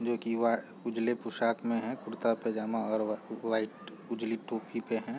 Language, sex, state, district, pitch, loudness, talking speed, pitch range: Hindi, male, Chhattisgarh, Raigarh, 115 Hz, -33 LUFS, 160 wpm, 110-115 Hz